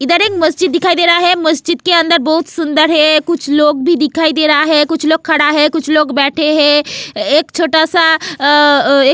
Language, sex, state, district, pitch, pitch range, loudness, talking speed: Hindi, female, Goa, North and South Goa, 315 Hz, 300-335 Hz, -11 LUFS, 205 wpm